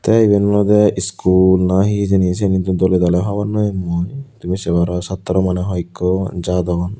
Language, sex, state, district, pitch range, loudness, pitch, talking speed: Chakma, male, Tripura, Unakoti, 90-100 Hz, -16 LUFS, 95 Hz, 170 wpm